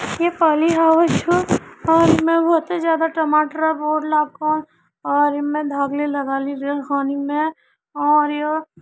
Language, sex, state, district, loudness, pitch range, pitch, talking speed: Hindi, female, Uttarakhand, Uttarkashi, -18 LUFS, 290-325 Hz, 310 Hz, 90 wpm